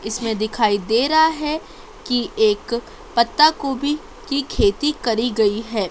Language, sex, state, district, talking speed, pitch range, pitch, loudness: Hindi, female, Madhya Pradesh, Dhar, 130 wpm, 225-305 Hz, 250 Hz, -19 LUFS